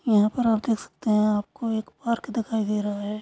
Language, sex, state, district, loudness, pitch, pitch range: Hindi, female, Maharashtra, Nagpur, -25 LUFS, 220 Hz, 210-230 Hz